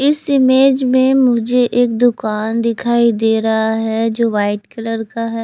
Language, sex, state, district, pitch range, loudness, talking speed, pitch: Hindi, female, Chandigarh, Chandigarh, 225-250 Hz, -15 LUFS, 165 wpm, 230 Hz